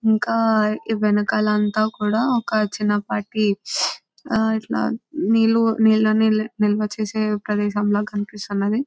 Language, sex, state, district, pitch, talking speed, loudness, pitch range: Telugu, female, Telangana, Nalgonda, 215 Hz, 75 wpm, -20 LUFS, 210-220 Hz